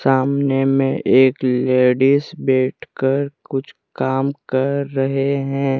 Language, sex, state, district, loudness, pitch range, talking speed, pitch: Hindi, male, Jharkhand, Deoghar, -18 LUFS, 130-140 Hz, 105 wpm, 135 Hz